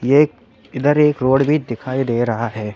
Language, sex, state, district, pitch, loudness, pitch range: Hindi, male, Madhya Pradesh, Bhopal, 130 Hz, -17 LUFS, 120-145 Hz